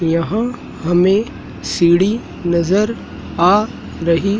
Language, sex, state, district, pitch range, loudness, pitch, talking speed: Hindi, male, Madhya Pradesh, Dhar, 170-210 Hz, -16 LUFS, 185 Hz, 80 wpm